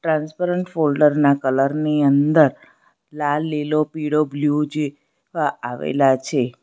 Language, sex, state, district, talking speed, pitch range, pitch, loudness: Gujarati, female, Gujarat, Valsad, 125 wpm, 140-155 Hz, 150 Hz, -19 LUFS